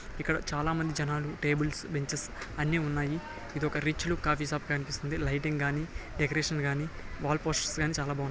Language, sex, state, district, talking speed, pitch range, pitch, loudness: Telugu, male, Telangana, Nalgonda, 175 wpm, 145-155 Hz, 150 Hz, -32 LUFS